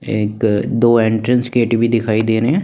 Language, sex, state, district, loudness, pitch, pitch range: Hindi, male, Chandigarh, Chandigarh, -15 LUFS, 115 Hz, 110-120 Hz